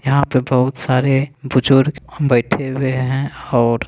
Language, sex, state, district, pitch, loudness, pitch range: Hindi, male, Bihar, Begusarai, 135 Hz, -17 LUFS, 130-140 Hz